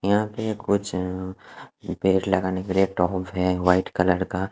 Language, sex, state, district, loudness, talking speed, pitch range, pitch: Hindi, male, Punjab, Fazilka, -24 LUFS, 160 wpm, 90-95 Hz, 95 Hz